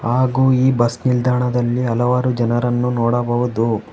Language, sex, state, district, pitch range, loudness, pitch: Kannada, male, Karnataka, Bangalore, 120-125 Hz, -17 LUFS, 120 Hz